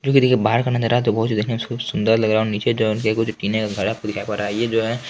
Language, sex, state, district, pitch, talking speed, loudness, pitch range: Hindi, male, Bihar, Lakhisarai, 110 Hz, 235 wpm, -20 LUFS, 110-120 Hz